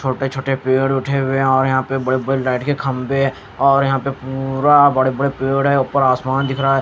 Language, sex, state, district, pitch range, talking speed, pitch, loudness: Hindi, male, Haryana, Jhajjar, 130-135 Hz, 240 wpm, 135 Hz, -17 LUFS